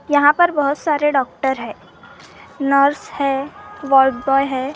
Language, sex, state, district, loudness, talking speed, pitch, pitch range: Hindi, female, Maharashtra, Gondia, -17 LUFS, 140 wpm, 280 Hz, 270-295 Hz